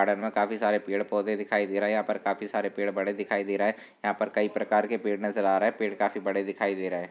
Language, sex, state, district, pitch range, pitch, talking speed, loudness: Hindi, male, Rajasthan, Churu, 100-105 Hz, 105 Hz, 310 wpm, -28 LUFS